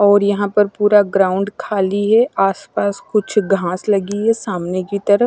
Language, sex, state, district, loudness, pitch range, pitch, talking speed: Hindi, female, Himachal Pradesh, Shimla, -16 LUFS, 195-210 Hz, 200 Hz, 180 wpm